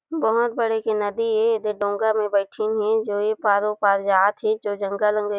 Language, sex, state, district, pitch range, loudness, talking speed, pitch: Chhattisgarhi, female, Chhattisgarh, Jashpur, 205-220 Hz, -22 LUFS, 200 wpm, 210 Hz